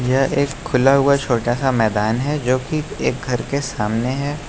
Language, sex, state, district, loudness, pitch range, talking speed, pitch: Hindi, male, Uttar Pradesh, Lucknow, -19 LUFS, 120-140 Hz, 200 wpm, 135 Hz